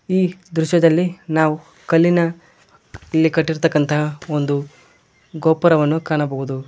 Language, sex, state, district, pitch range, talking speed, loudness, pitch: Kannada, male, Karnataka, Koppal, 150-170 Hz, 80 wpm, -18 LUFS, 160 Hz